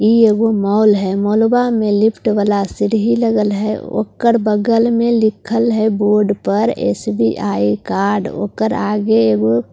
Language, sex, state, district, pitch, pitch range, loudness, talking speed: Hindi, female, Bihar, Katihar, 210 Hz, 200-225 Hz, -15 LUFS, 155 wpm